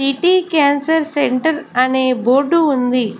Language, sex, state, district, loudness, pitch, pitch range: Telugu, female, Andhra Pradesh, Sri Satya Sai, -15 LUFS, 285 Hz, 255-320 Hz